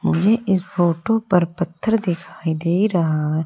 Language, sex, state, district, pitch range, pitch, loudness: Hindi, female, Madhya Pradesh, Umaria, 165-200 Hz, 175 Hz, -20 LUFS